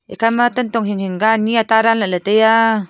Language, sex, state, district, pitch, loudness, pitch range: Wancho, female, Arunachal Pradesh, Longding, 220 Hz, -15 LUFS, 205-225 Hz